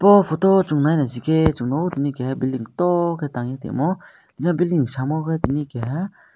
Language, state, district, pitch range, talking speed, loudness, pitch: Kokborok, Tripura, West Tripura, 130-175 Hz, 180 wpm, -21 LUFS, 150 Hz